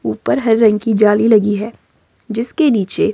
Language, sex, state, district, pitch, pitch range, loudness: Hindi, female, Himachal Pradesh, Shimla, 215 Hz, 205-225 Hz, -14 LUFS